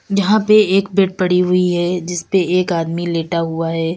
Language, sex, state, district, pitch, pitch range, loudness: Hindi, female, Uttar Pradesh, Lalitpur, 180 Hz, 170-195 Hz, -16 LUFS